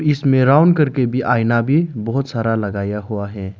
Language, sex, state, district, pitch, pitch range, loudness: Hindi, male, Arunachal Pradesh, Lower Dibang Valley, 120 Hz, 105-140 Hz, -17 LUFS